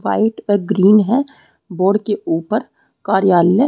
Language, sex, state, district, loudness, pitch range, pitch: Hindi, female, Chhattisgarh, Rajnandgaon, -16 LUFS, 190-220 Hz, 205 Hz